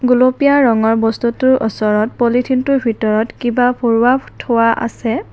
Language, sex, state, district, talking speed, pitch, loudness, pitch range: Assamese, female, Assam, Kamrup Metropolitan, 125 wpm, 235 Hz, -14 LUFS, 225-255 Hz